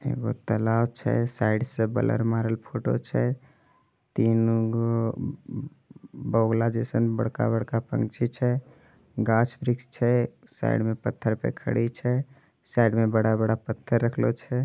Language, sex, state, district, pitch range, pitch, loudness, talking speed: Angika, male, Bihar, Begusarai, 115-125 Hz, 115 Hz, -26 LUFS, 125 wpm